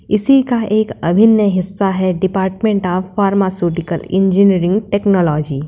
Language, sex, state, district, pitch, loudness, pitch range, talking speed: Hindi, female, Uttar Pradesh, Varanasi, 190 Hz, -14 LUFS, 180-205 Hz, 125 wpm